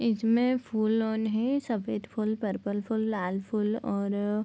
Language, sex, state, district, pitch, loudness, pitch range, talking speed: Hindi, female, Bihar, Bhagalpur, 220 Hz, -29 LUFS, 205-225 Hz, 160 wpm